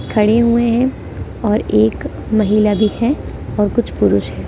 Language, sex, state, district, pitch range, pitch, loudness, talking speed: Hindi, female, Delhi, New Delhi, 200-235 Hz, 215 Hz, -15 LUFS, 175 wpm